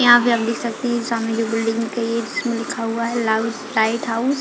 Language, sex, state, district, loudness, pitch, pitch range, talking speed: Hindi, female, Chhattisgarh, Raigarh, -20 LUFS, 230 Hz, 225-235 Hz, 260 wpm